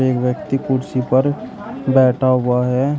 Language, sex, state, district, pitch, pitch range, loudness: Hindi, male, Uttar Pradesh, Shamli, 130 Hz, 125-135 Hz, -17 LUFS